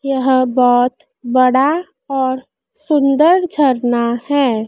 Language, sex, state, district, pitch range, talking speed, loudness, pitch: Hindi, female, Madhya Pradesh, Dhar, 250-285 Hz, 90 wpm, -15 LUFS, 260 Hz